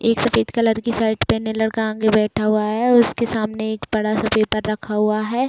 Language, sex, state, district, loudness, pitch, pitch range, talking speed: Hindi, female, Chhattisgarh, Bilaspur, -19 LUFS, 220 Hz, 215-230 Hz, 220 wpm